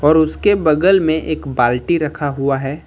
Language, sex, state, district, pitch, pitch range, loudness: Hindi, male, Uttar Pradesh, Lucknow, 155 Hz, 135-160 Hz, -16 LUFS